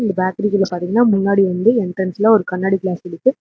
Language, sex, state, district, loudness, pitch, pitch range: Tamil, female, Tamil Nadu, Namakkal, -17 LUFS, 195 Hz, 185-215 Hz